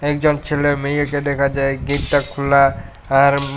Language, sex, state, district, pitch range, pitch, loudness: Bengali, male, Tripura, West Tripura, 140-145 Hz, 140 Hz, -17 LUFS